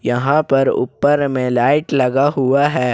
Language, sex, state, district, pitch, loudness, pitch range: Hindi, male, Jharkhand, Ranchi, 135 Hz, -16 LUFS, 130-145 Hz